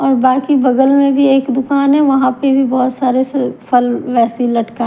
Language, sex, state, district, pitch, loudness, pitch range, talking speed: Hindi, female, Haryana, Jhajjar, 260 Hz, -13 LUFS, 250-275 Hz, 210 wpm